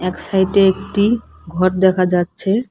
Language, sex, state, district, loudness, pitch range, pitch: Bengali, female, West Bengal, Cooch Behar, -16 LUFS, 185-200 Hz, 190 Hz